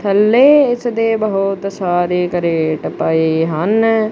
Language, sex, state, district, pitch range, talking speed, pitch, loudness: Punjabi, female, Punjab, Kapurthala, 175-225 Hz, 115 wpm, 195 Hz, -14 LUFS